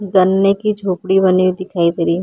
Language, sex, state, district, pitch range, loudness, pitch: Hindi, female, Uttar Pradesh, Jyotiba Phule Nagar, 180-195 Hz, -15 LUFS, 185 Hz